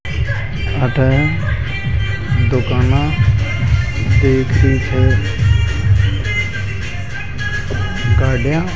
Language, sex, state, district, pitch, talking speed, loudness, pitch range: Hindi, male, Rajasthan, Jaipur, 105 Hz, 40 wpm, -16 LUFS, 100-125 Hz